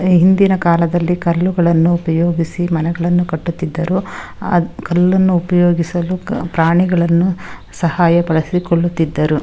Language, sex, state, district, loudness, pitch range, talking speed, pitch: Kannada, female, Karnataka, Shimoga, -15 LUFS, 170-180 Hz, 75 wpm, 175 Hz